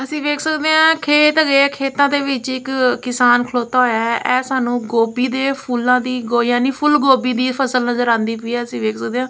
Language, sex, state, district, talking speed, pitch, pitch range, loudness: Punjabi, female, Punjab, Kapurthala, 220 wpm, 255 Hz, 245-275 Hz, -16 LUFS